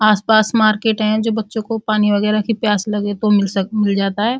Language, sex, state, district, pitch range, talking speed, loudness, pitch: Hindi, female, Uttar Pradesh, Muzaffarnagar, 205-220 Hz, 205 wpm, -16 LUFS, 215 Hz